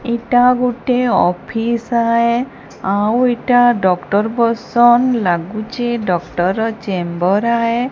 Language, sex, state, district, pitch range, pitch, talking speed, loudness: Odia, female, Odisha, Sambalpur, 205-245 Hz, 235 Hz, 100 wpm, -15 LUFS